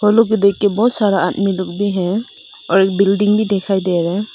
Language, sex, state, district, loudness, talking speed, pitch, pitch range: Hindi, female, Arunachal Pradesh, Papum Pare, -16 LUFS, 235 wpm, 200 Hz, 190-210 Hz